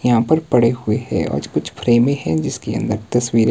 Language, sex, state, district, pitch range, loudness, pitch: Hindi, male, Himachal Pradesh, Shimla, 115-125 Hz, -18 LUFS, 120 Hz